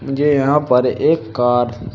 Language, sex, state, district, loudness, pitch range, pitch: Hindi, male, Uttar Pradesh, Shamli, -16 LUFS, 120-145 Hz, 125 Hz